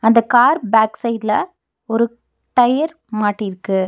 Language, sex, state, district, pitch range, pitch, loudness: Tamil, female, Tamil Nadu, Nilgiris, 210-240 Hz, 225 Hz, -17 LUFS